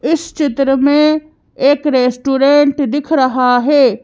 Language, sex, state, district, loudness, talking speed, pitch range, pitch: Hindi, female, Madhya Pradesh, Bhopal, -13 LUFS, 120 wpm, 265-295 Hz, 280 Hz